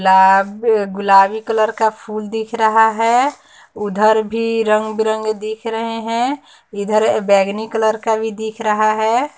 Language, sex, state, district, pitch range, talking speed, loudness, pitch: Hindi, female, Bihar, West Champaran, 215-225 Hz, 145 wpm, -16 LUFS, 220 Hz